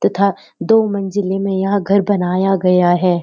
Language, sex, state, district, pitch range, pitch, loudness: Hindi, female, Uttarakhand, Uttarkashi, 180-200 Hz, 195 Hz, -15 LUFS